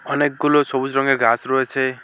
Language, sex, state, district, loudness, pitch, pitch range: Bengali, male, West Bengal, Alipurduar, -18 LUFS, 135 Hz, 130-145 Hz